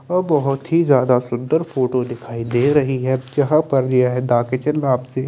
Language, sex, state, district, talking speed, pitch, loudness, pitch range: Hindi, male, Chandigarh, Chandigarh, 215 wpm, 130 Hz, -18 LUFS, 125-150 Hz